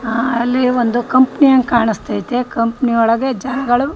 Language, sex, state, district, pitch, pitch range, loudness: Kannada, female, Karnataka, Shimoga, 245 Hz, 230-260 Hz, -15 LUFS